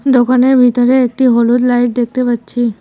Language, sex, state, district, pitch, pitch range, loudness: Bengali, female, West Bengal, Cooch Behar, 245 Hz, 240-255 Hz, -12 LUFS